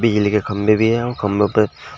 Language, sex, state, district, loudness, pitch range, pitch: Hindi, male, Uttar Pradesh, Shamli, -17 LUFS, 105-115 Hz, 110 Hz